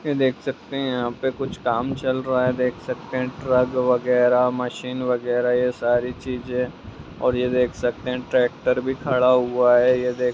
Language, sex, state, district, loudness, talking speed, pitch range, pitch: Magahi, male, Bihar, Gaya, -22 LUFS, 190 wpm, 125-130 Hz, 125 Hz